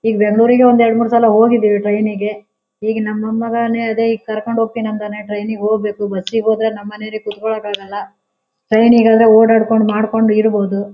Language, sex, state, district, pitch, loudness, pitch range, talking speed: Kannada, female, Karnataka, Shimoga, 220 Hz, -14 LUFS, 210-225 Hz, 160 wpm